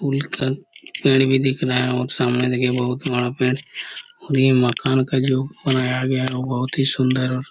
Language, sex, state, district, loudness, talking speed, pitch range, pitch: Hindi, male, Chhattisgarh, Korba, -20 LUFS, 185 wpm, 125-135 Hz, 130 Hz